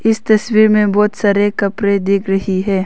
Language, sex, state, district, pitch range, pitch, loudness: Hindi, female, Arunachal Pradesh, Longding, 195-215 Hz, 205 Hz, -14 LUFS